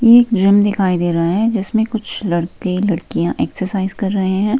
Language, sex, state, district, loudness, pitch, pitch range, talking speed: Hindi, female, Himachal Pradesh, Shimla, -16 LUFS, 195 Hz, 185-220 Hz, 195 wpm